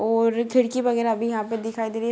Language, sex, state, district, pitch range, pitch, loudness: Hindi, female, Bihar, Muzaffarpur, 225-235 Hz, 230 Hz, -23 LUFS